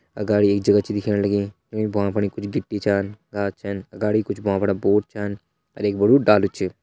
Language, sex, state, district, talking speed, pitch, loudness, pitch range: Hindi, male, Uttarakhand, Uttarkashi, 220 wpm, 100 Hz, -21 LUFS, 100-105 Hz